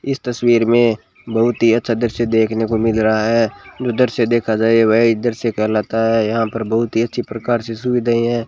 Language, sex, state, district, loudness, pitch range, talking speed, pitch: Hindi, male, Rajasthan, Bikaner, -17 LUFS, 115-120 Hz, 205 wpm, 115 Hz